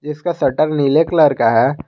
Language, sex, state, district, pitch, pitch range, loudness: Hindi, male, Jharkhand, Garhwa, 150 Hz, 145-160 Hz, -15 LUFS